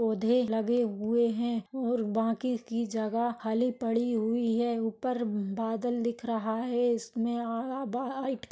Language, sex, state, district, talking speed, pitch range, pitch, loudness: Hindi, female, Maharashtra, Solapur, 135 wpm, 225-245 Hz, 235 Hz, -30 LUFS